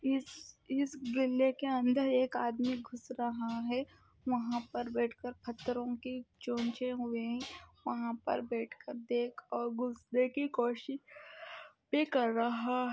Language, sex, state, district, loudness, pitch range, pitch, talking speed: Hindi, female, Uttar Pradesh, Budaun, -36 LUFS, 240-265 Hz, 250 Hz, 145 wpm